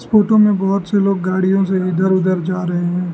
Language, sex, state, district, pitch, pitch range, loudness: Hindi, male, Arunachal Pradesh, Lower Dibang Valley, 190 Hz, 185-195 Hz, -16 LUFS